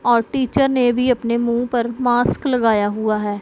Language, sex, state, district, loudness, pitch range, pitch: Hindi, female, Punjab, Pathankot, -18 LUFS, 225-250 Hz, 240 Hz